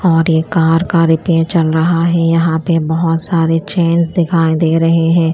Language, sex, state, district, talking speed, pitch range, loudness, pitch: Hindi, female, Punjab, Kapurthala, 190 wpm, 165-170 Hz, -13 LUFS, 165 Hz